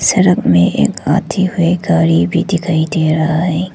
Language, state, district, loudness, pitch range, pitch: Hindi, Arunachal Pradesh, Lower Dibang Valley, -13 LUFS, 155-180 Hz, 170 Hz